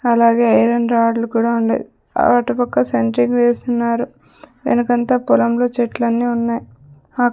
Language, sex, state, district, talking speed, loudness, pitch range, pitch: Telugu, female, Andhra Pradesh, Sri Satya Sai, 115 wpm, -16 LUFS, 230-240 Hz, 235 Hz